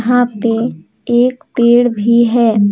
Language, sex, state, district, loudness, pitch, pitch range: Hindi, female, Jharkhand, Deoghar, -13 LUFS, 235 Hz, 230-245 Hz